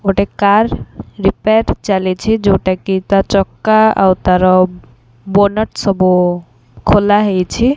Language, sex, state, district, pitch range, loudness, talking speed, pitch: Odia, female, Odisha, Khordha, 185-205 Hz, -13 LUFS, 100 wpm, 195 Hz